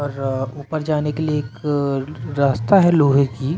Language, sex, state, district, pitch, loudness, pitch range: Hindi, male, Madhya Pradesh, Katni, 140 Hz, -19 LUFS, 135-150 Hz